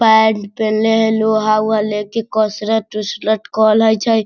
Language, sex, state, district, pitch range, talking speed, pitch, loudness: Hindi, female, Bihar, Sitamarhi, 215-220 Hz, 140 wpm, 220 Hz, -15 LUFS